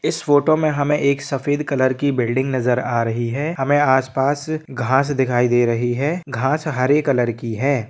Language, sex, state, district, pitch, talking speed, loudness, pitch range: Hindi, male, Jharkhand, Sahebganj, 135 Hz, 190 wpm, -19 LUFS, 125-145 Hz